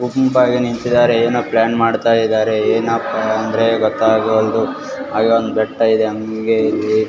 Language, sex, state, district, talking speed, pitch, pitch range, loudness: Kannada, male, Karnataka, Raichur, 110 wpm, 115 Hz, 110-115 Hz, -15 LUFS